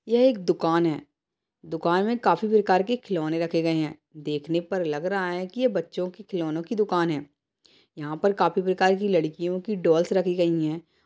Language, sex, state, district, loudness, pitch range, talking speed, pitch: Hindi, female, Bihar, Jamui, -25 LUFS, 165-195 Hz, 200 wpm, 175 Hz